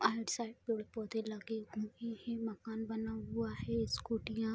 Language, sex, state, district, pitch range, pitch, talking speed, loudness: Hindi, female, Bihar, Bhagalpur, 215-225 Hz, 220 Hz, 145 wpm, -40 LUFS